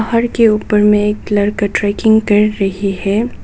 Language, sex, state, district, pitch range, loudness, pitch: Hindi, female, Nagaland, Kohima, 205-220 Hz, -13 LUFS, 210 Hz